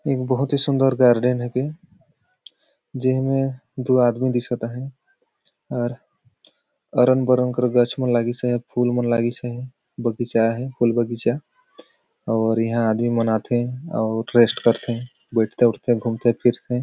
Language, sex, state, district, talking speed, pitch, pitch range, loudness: Sadri, male, Chhattisgarh, Jashpur, 155 wpm, 120 Hz, 120-130 Hz, -21 LUFS